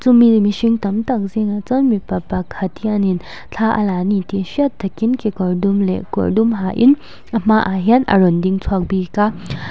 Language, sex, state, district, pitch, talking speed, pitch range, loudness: Mizo, female, Mizoram, Aizawl, 205 Hz, 200 wpm, 190-225 Hz, -17 LUFS